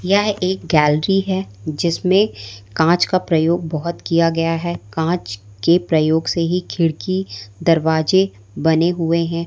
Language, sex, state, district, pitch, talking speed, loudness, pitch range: Hindi, female, Madhya Pradesh, Umaria, 165 Hz, 140 wpm, -18 LUFS, 155-175 Hz